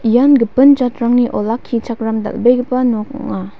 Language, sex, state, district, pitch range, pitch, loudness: Garo, female, Meghalaya, West Garo Hills, 225-250 Hz, 240 Hz, -14 LUFS